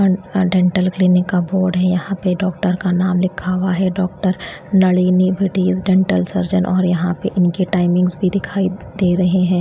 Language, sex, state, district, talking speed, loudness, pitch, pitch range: Hindi, female, Maharashtra, Gondia, 180 wpm, -17 LUFS, 185 Hz, 180-190 Hz